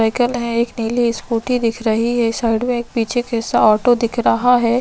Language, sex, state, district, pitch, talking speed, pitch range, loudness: Hindi, female, Chhattisgarh, Sukma, 235 Hz, 185 wpm, 230-245 Hz, -17 LUFS